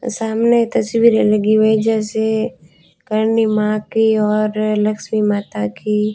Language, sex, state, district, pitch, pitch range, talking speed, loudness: Hindi, female, Rajasthan, Bikaner, 215 Hz, 210-220 Hz, 125 wpm, -16 LUFS